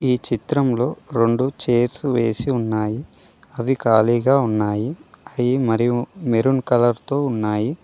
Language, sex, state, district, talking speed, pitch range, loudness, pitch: Telugu, male, Telangana, Mahabubabad, 115 wpm, 115-135 Hz, -20 LUFS, 120 Hz